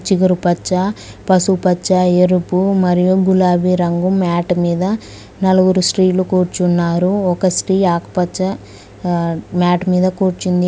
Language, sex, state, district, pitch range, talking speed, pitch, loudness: Telugu, female, Telangana, Mahabubabad, 175-185 Hz, 110 wpm, 180 Hz, -15 LUFS